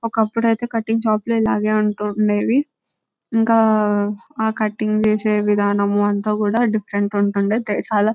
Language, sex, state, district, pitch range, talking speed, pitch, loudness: Telugu, female, Telangana, Nalgonda, 205-225 Hz, 110 wpm, 215 Hz, -19 LUFS